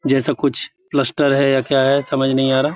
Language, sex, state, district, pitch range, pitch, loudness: Hindi, male, Uttar Pradesh, Etah, 135-145 Hz, 135 Hz, -17 LUFS